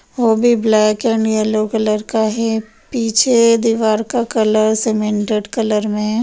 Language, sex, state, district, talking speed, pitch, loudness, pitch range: Hindi, female, Bihar, Madhepura, 155 wpm, 220 Hz, -15 LUFS, 215-230 Hz